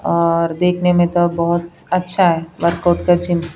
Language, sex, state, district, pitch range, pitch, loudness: Hindi, female, Bihar, Patna, 170-175 Hz, 175 Hz, -16 LUFS